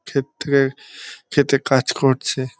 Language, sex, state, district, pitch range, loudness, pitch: Bengali, male, West Bengal, North 24 Parganas, 135-140 Hz, -19 LUFS, 135 Hz